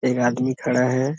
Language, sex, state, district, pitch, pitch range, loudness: Hindi, male, Bihar, Darbhanga, 125 Hz, 125-130 Hz, -21 LUFS